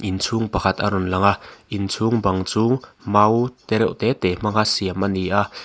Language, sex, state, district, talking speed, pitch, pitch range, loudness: Mizo, male, Mizoram, Aizawl, 200 wpm, 100 Hz, 95-110 Hz, -20 LUFS